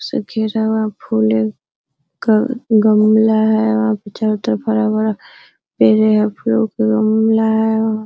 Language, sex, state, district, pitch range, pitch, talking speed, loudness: Hindi, female, Bihar, Araria, 215-220 Hz, 220 Hz, 150 wpm, -15 LUFS